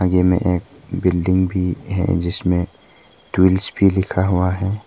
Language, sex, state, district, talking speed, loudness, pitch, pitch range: Hindi, male, Arunachal Pradesh, Papum Pare, 150 wpm, -18 LUFS, 90 Hz, 90-95 Hz